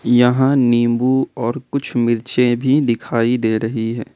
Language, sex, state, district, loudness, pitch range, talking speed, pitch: Hindi, male, Jharkhand, Ranchi, -17 LUFS, 115-130 Hz, 145 wpm, 120 Hz